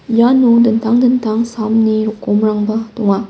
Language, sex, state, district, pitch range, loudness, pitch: Garo, female, Meghalaya, West Garo Hills, 215-235 Hz, -13 LUFS, 225 Hz